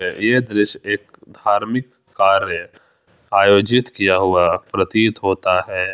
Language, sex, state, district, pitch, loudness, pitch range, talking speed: Hindi, male, Jharkhand, Ranchi, 100 Hz, -17 LUFS, 95-115 Hz, 110 wpm